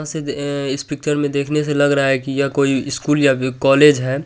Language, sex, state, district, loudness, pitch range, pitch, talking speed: Hindi, male, Bihar, Supaul, -17 LUFS, 135-145 Hz, 140 Hz, 255 wpm